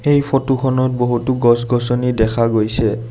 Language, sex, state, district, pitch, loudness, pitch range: Assamese, male, Assam, Sonitpur, 120 Hz, -16 LUFS, 115-130 Hz